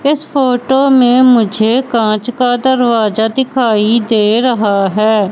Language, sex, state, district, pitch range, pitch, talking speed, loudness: Hindi, female, Madhya Pradesh, Katni, 215-255 Hz, 240 Hz, 125 wpm, -11 LUFS